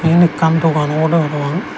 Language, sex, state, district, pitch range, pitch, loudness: Chakma, male, Tripura, Dhalai, 150-165 Hz, 160 Hz, -15 LUFS